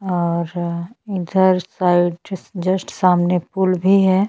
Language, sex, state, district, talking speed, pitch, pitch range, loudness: Hindi, female, Chhattisgarh, Bastar, 110 wpm, 185 Hz, 175-190 Hz, -18 LUFS